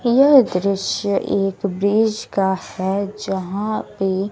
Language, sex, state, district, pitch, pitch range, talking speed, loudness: Hindi, female, Bihar, West Champaran, 200 Hz, 190-210 Hz, 110 wpm, -19 LUFS